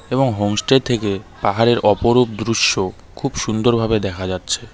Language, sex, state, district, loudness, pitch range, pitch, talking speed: Bengali, male, West Bengal, Darjeeling, -18 LUFS, 100-120 Hz, 110 Hz, 140 wpm